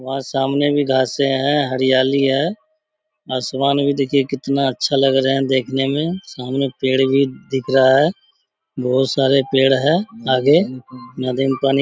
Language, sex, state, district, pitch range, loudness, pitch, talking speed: Hindi, male, Bihar, Supaul, 130-140 Hz, -17 LUFS, 135 Hz, 165 wpm